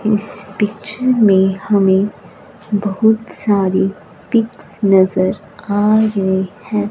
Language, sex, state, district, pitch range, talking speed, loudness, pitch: Hindi, female, Punjab, Fazilka, 190-215 Hz, 95 wpm, -15 LUFS, 205 Hz